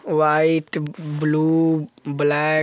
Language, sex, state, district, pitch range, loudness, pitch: Bajjika, male, Bihar, Vaishali, 150-160 Hz, -20 LUFS, 155 Hz